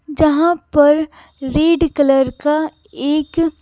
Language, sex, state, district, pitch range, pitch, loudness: Hindi, female, Bihar, Patna, 290-325 Hz, 305 Hz, -15 LUFS